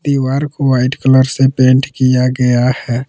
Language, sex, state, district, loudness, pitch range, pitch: Hindi, male, Jharkhand, Palamu, -12 LUFS, 125-135 Hz, 130 Hz